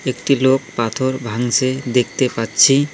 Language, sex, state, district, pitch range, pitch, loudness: Bengali, male, West Bengal, Cooch Behar, 120-135 Hz, 130 Hz, -17 LUFS